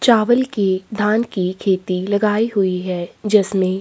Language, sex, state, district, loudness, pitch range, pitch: Hindi, female, Chhattisgarh, Korba, -18 LUFS, 185-215 Hz, 200 Hz